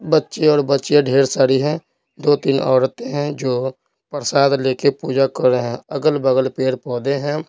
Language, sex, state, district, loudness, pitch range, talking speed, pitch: Hindi, male, Bihar, Patna, -18 LUFS, 130-145 Hz, 150 wpm, 140 Hz